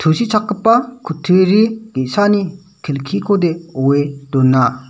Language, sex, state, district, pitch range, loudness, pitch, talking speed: Garo, male, Meghalaya, West Garo Hills, 140-205 Hz, -15 LUFS, 180 Hz, 75 wpm